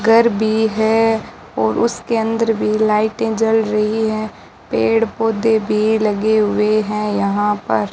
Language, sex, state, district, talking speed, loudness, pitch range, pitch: Hindi, female, Rajasthan, Bikaner, 150 wpm, -17 LUFS, 210-225 Hz, 220 Hz